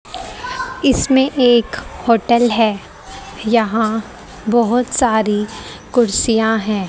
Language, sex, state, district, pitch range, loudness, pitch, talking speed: Hindi, female, Haryana, Rohtak, 220-250 Hz, -16 LUFS, 230 Hz, 80 wpm